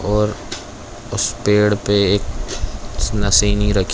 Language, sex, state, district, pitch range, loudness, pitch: Hindi, male, Chhattisgarh, Korba, 100-105 Hz, -18 LUFS, 100 Hz